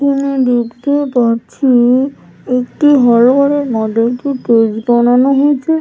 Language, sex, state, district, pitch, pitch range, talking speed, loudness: Bengali, female, West Bengal, Jhargram, 250 Hz, 235-280 Hz, 105 wpm, -12 LUFS